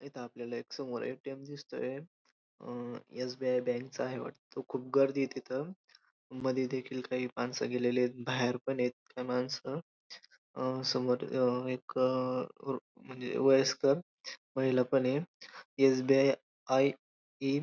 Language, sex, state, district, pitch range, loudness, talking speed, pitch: Marathi, male, Maharashtra, Dhule, 125-135 Hz, -33 LUFS, 135 wpm, 130 Hz